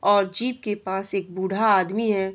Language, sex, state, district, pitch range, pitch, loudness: Hindi, female, Bihar, Sitamarhi, 190-215 Hz, 200 Hz, -23 LUFS